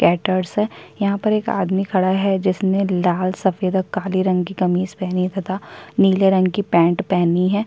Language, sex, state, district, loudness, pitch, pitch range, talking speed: Hindi, female, Chhattisgarh, Kabirdham, -19 LUFS, 190 Hz, 185-195 Hz, 190 wpm